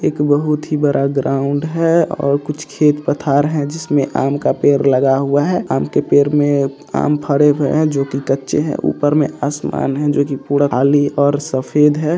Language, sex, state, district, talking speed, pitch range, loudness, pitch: Hindi, male, Bihar, Purnia, 185 wpm, 140-150 Hz, -16 LUFS, 145 Hz